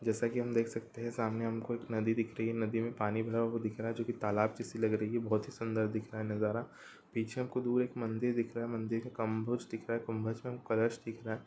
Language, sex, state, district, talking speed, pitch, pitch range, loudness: Hindi, male, Chhattisgarh, Rajnandgaon, 285 wpm, 115 Hz, 110-120 Hz, -36 LUFS